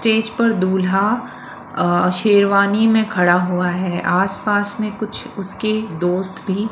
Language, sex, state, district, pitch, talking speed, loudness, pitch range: Hindi, female, Maharashtra, Washim, 200 Hz, 135 wpm, -18 LUFS, 185-215 Hz